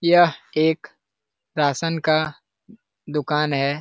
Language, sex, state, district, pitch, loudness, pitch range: Hindi, male, Bihar, Lakhisarai, 155 Hz, -21 LUFS, 150-170 Hz